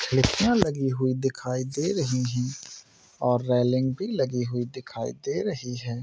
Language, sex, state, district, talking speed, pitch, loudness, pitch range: Hindi, male, Maharashtra, Nagpur, 160 wpm, 130 Hz, -26 LUFS, 125-135 Hz